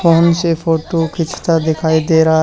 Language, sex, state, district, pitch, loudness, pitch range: Hindi, male, Haryana, Charkhi Dadri, 165 Hz, -14 LUFS, 160-170 Hz